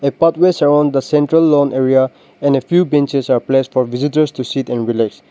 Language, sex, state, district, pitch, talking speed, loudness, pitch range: English, male, Nagaland, Dimapur, 140 Hz, 205 wpm, -14 LUFS, 130-150 Hz